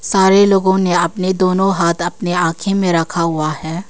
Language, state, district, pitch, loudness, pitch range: Hindi, Arunachal Pradesh, Papum Pare, 180 Hz, -15 LUFS, 170-190 Hz